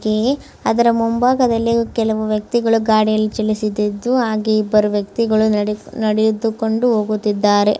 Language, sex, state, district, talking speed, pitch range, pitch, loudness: Kannada, female, Karnataka, Mysore, 85 wpm, 215-230 Hz, 220 Hz, -17 LUFS